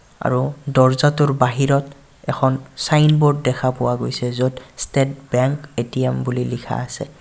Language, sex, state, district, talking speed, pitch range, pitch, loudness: Assamese, male, Assam, Kamrup Metropolitan, 125 wpm, 125-140 Hz, 130 Hz, -19 LUFS